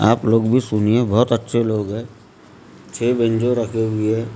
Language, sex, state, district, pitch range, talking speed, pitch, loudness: Hindi, male, Maharashtra, Gondia, 110-115 Hz, 195 wpm, 115 Hz, -18 LUFS